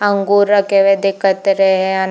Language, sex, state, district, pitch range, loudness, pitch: Hindi, female, Chhattisgarh, Bilaspur, 195-200 Hz, -13 LUFS, 195 Hz